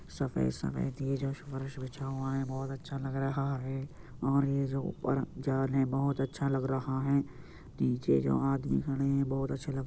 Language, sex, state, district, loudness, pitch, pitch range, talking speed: Hindi, male, Uttar Pradesh, Jyotiba Phule Nagar, -33 LUFS, 135 Hz, 130-135 Hz, 195 wpm